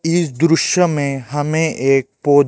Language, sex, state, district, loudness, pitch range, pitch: Hindi, male, Chhattisgarh, Raipur, -16 LUFS, 135-165 Hz, 145 Hz